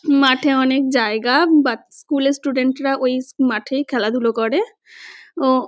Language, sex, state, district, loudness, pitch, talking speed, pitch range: Bengali, female, West Bengal, North 24 Parganas, -18 LUFS, 265 Hz, 160 wpm, 255-285 Hz